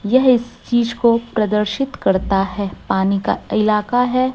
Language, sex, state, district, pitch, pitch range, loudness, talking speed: Hindi, female, Chhattisgarh, Raipur, 230 Hz, 200-245 Hz, -18 LUFS, 150 wpm